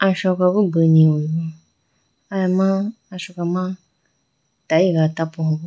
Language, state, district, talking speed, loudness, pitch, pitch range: Idu Mishmi, Arunachal Pradesh, Lower Dibang Valley, 105 wpm, -19 LUFS, 180 Hz, 160-190 Hz